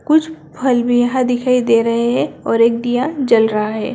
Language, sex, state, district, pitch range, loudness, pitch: Hindi, female, Bihar, Bhagalpur, 230-255 Hz, -15 LUFS, 245 Hz